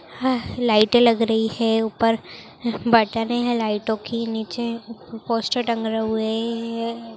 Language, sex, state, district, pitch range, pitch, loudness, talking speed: Hindi, female, Bihar, Madhepura, 220-235 Hz, 230 Hz, -22 LUFS, 135 wpm